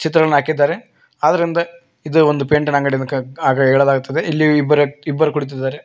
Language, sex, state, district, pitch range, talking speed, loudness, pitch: Kannada, male, Karnataka, Koppal, 135-155 Hz, 155 wpm, -16 LUFS, 145 Hz